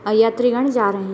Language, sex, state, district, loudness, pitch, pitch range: Hindi, female, Uttar Pradesh, Deoria, -18 LUFS, 225 Hz, 205-245 Hz